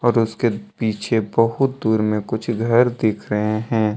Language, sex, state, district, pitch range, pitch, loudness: Hindi, male, Jharkhand, Deoghar, 110-115 Hz, 110 Hz, -20 LUFS